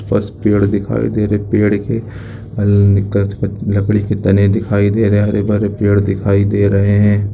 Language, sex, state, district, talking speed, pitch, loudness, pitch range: Hindi, male, Uttar Pradesh, Muzaffarnagar, 165 wpm, 100 Hz, -14 LUFS, 100-105 Hz